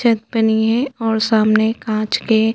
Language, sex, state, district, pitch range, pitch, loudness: Hindi, female, Chhattisgarh, Jashpur, 220-225 Hz, 220 Hz, -17 LUFS